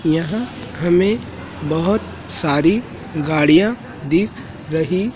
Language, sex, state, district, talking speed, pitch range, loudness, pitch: Hindi, male, Madhya Pradesh, Dhar, 80 wpm, 155-205 Hz, -18 LUFS, 170 Hz